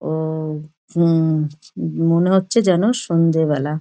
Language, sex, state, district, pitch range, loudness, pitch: Bengali, male, West Bengal, Dakshin Dinajpur, 155-170 Hz, -18 LUFS, 160 Hz